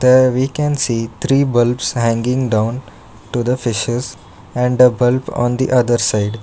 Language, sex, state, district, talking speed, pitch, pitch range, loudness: English, male, Karnataka, Bangalore, 170 wpm, 120 Hz, 115-130 Hz, -16 LUFS